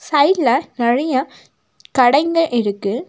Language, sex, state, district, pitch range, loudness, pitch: Tamil, female, Tamil Nadu, Nilgiris, 235-310 Hz, -16 LUFS, 260 Hz